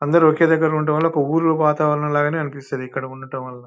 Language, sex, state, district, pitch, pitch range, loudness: Telugu, male, Telangana, Nalgonda, 150 Hz, 135-160 Hz, -19 LUFS